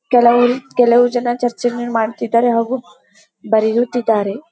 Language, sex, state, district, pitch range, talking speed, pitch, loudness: Kannada, female, Karnataka, Dharwad, 230-245 Hz, 105 wpm, 240 Hz, -16 LUFS